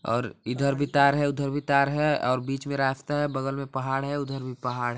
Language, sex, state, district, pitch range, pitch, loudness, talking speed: Hindi, male, Chhattisgarh, Balrampur, 130-145 Hz, 140 Hz, -26 LUFS, 250 wpm